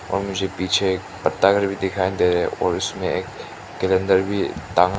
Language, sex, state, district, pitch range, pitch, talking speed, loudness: Hindi, male, Manipur, Imphal West, 95-100 Hz, 95 Hz, 205 wpm, -21 LUFS